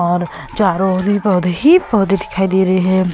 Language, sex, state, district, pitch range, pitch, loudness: Hindi, female, Goa, North and South Goa, 185-200 Hz, 190 Hz, -14 LUFS